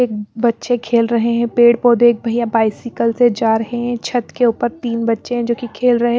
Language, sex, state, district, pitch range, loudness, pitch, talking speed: Hindi, female, Bihar, West Champaran, 230-240 Hz, -16 LUFS, 235 Hz, 235 wpm